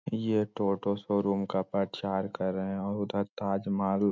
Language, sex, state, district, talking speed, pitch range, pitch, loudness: Magahi, male, Bihar, Lakhisarai, 190 wpm, 95-100 Hz, 100 Hz, -31 LUFS